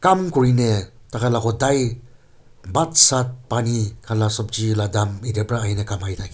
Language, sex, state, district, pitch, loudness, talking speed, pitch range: Nagamese, male, Nagaland, Kohima, 115 Hz, -20 LUFS, 190 wpm, 105-125 Hz